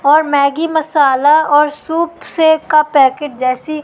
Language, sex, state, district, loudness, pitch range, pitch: Hindi, female, Madhya Pradesh, Katni, -13 LUFS, 285-315 Hz, 295 Hz